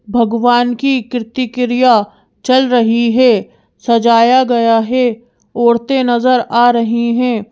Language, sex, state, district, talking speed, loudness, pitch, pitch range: Hindi, female, Madhya Pradesh, Bhopal, 120 wpm, -12 LUFS, 240 Hz, 230-250 Hz